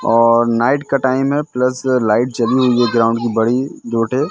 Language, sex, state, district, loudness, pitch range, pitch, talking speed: Hindi, male, Madhya Pradesh, Katni, -15 LUFS, 115-130 Hz, 125 Hz, 210 wpm